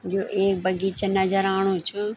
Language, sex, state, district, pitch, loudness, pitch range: Garhwali, female, Uttarakhand, Tehri Garhwal, 195 Hz, -23 LUFS, 190-195 Hz